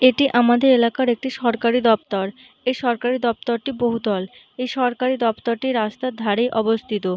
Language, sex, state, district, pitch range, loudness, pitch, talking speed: Bengali, female, West Bengal, Jhargram, 225-255 Hz, -20 LUFS, 240 Hz, 135 wpm